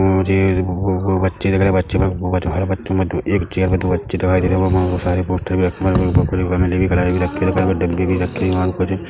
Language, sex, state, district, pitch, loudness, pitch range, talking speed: Hindi, male, Chhattisgarh, Rajnandgaon, 95 Hz, -18 LUFS, 90-95 Hz, 290 wpm